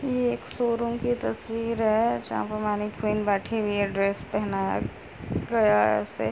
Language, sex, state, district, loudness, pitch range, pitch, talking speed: Hindi, female, Uttar Pradesh, Jyotiba Phule Nagar, -26 LUFS, 195-230 Hz, 210 Hz, 160 wpm